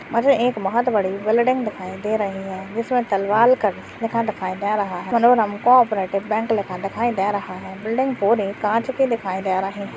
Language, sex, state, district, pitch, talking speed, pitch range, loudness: Hindi, female, Maharashtra, Solapur, 210 Hz, 180 wpm, 195-235 Hz, -20 LUFS